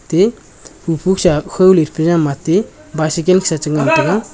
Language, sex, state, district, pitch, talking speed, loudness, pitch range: Wancho, male, Arunachal Pradesh, Longding, 165 Hz, 220 wpm, -14 LUFS, 155-185 Hz